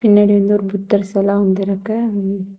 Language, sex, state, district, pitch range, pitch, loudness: Tamil, female, Tamil Nadu, Kanyakumari, 195-205 Hz, 200 Hz, -15 LUFS